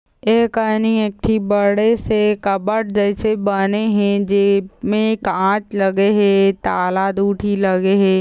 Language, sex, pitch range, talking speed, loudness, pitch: Chhattisgarhi, female, 195-215 Hz, 130 wpm, -17 LUFS, 205 Hz